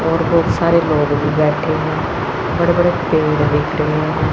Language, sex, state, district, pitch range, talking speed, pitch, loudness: Hindi, female, Chandigarh, Chandigarh, 150-170 Hz, 180 wpm, 155 Hz, -16 LUFS